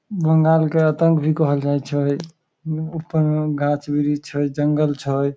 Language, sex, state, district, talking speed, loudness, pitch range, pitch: Maithili, male, Bihar, Samastipur, 165 wpm, -20 LUFS, 145-160 Hz, 150 Hz